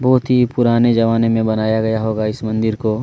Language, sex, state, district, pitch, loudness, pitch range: Hindi, male, Chhattisgarh, Kabirdham, 110 Hz, -16 LUFS, 110-120 Hz